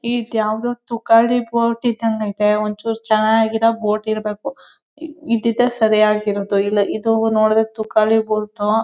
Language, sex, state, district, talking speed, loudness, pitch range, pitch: Kannada, female, Karnataka, Mysore, 120 wpm, -17 LUFS, 215-230 Hz, 220 Hz